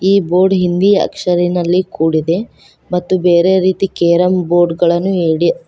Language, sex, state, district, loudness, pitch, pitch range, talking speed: Kannada, female, Karnataka, Koppal, -13 LUFS, 180 Hz, 175-190 Hz, 135 wpm